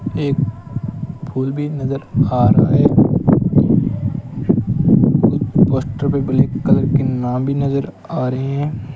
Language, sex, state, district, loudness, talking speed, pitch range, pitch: Hindi, male, Rajasthan, Bikaner, -17 LUFS, 125 wpm, 130-145 Hz, 140 Hz